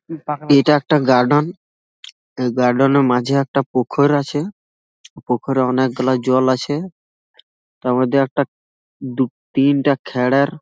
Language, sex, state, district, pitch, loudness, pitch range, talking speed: Bengali, male, West Bengal, Malda, 135 Hz, -17 LUFS, 125-145 Hz, 120 wpm